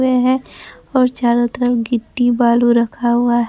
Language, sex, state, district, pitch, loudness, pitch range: Hindi, female, Bihar, Kaimur, 240 Hz, -16 LUFS, 235-250 Hz